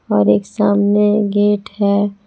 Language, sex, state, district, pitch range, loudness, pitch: Hindi, female, Jharkhand, Palamu, 200-205 Hz, -15 LUFS, 205 Hz